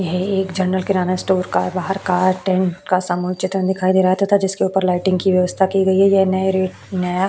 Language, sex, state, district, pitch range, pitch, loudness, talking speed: Hindi, female, Uttar Pradesh, Hamirpur, 185-190 Hz, 185 Hz, -18 LUFS, 240 wpm